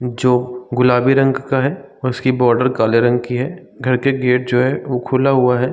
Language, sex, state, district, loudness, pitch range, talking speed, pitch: Hindi, male, Bihar, Saran, -16 LUFS, 125-135 Hz, 220 wpm, 125 Hz